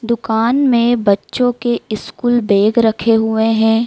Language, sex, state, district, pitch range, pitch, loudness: Hindi, female, Madhya Pradesh, Dhar, 220-240 Hz, 230 Hz, -15 LUFS